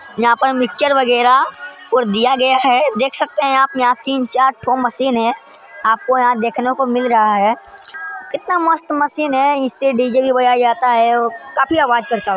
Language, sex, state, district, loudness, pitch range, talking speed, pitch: Hindi, female, Bihar, Jamui, -15 LUFS, 240-280 Hz, 180 wpm, 260 Hz